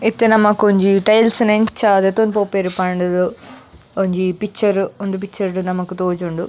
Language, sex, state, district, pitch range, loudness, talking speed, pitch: Tulu, female, Karnataka, Dakshina Kannada, 185-210 Hz, -16 LUFS, 140 wpm, 195 Hz